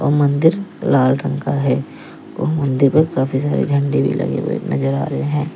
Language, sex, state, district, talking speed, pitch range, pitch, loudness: Hindi, male, Uttar Pradesh, Lalitpur, 195 wpm, 130-150 Hz, 140 Hz, -17 LUFS